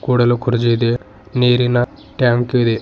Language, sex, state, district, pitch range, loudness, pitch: Kannada, male, Karnataka, Bidar, 115-125 Hz, -16 LUFS, 120 Hz